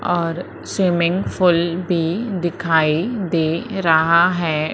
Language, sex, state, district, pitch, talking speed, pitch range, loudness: Hindi, female, Madhya Pradesh, Umaria, 170 Hz, 100 wpm, 165-180 Hz, -18 LUFS